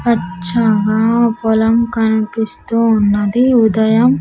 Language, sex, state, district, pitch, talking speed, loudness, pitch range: Telugu, female, Andhra Pradesh, Sri Satya Sai, 225 Hz, 70 wpm, -14 LUFS, 220-230 Hz